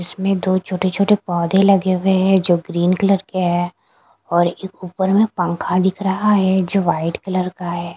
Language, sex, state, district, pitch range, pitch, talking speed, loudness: Hindi, female, Punjab, Kapurthala, 175-190 Hz, 185 Hz, 195 wpm, -17 LUFS